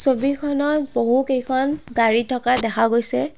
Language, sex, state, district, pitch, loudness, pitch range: Assamese, female, Assam, Kamrup Metropolitan, 260 Hz, -19 LUFS, 240-280 Hz